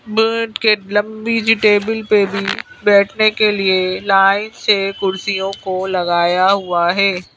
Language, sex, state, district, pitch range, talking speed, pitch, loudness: Hindi, female, Madhya Pradesh, Bhopal, 190-215 Hz, 140 wpm, 200 Hz, -15 LUFS